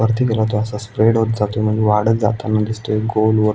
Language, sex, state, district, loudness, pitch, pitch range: Marathi, male, Maharashtra, Aurangabad, -17 LUFS, 110 Hz, 105-110 Hz